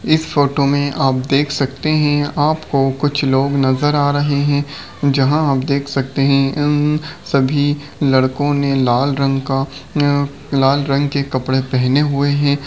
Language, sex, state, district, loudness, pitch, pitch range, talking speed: Hindi, male, Bihar, Begusarai, -16 LUFS, 140 Hz, 135-145 Hz, 155 wpm